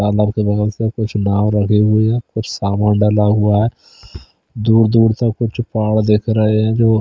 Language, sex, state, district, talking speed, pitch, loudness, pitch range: Hindi, male, Chandigarh, Chandigarh, 195 wpm, 110 Hz, -15 LUFS, 105-110 Hz